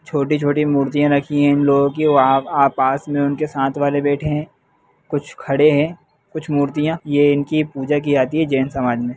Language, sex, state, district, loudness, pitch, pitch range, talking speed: Hindi, male, Bihar, Jahanabad, -17 LUFS, 145 Hz, 140-150 Hz, 195 wpm